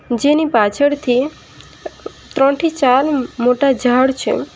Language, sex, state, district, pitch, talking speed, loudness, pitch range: Gujarati, female, Gujarat, Valsad, 265 Hz, 105 wpm, -15 LUFS, 250-290 Hz